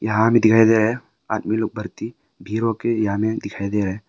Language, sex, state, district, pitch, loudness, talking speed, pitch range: Hindi, male, Arunachal Pradesh, Longding, 110 Hz, -20 LUFS, 190 wpm, 105-115 Hz